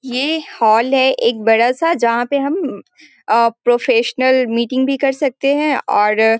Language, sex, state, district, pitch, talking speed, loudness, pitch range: Hindi, female, Bihar, Sitamarhi, 255 Hz, 170 wpm, -15 LUFS, 230-275 Hz